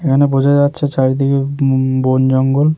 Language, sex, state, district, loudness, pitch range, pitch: Bengali, male, West Bengal, Jalpaiguri, -14 LUFS, 130-145 Hz, 135 Hz